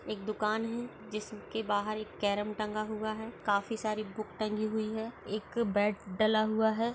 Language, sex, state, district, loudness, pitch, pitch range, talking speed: Hindi, female, Maharashtra, Dhule, -33 LUFS, 215 Hz, 210-220 Hz, 180 wpm